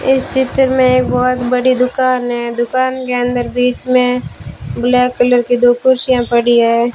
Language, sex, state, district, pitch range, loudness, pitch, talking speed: Hindi, female, Rajasthan, Bikaner, 245-255 Hz, -13 LUFS, 250 Hz, 175 wpm